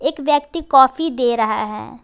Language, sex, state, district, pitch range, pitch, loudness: Hindi, female, Jharkhand, Garhwa, 220-295 Hz, 265 Hz, -17 LUFS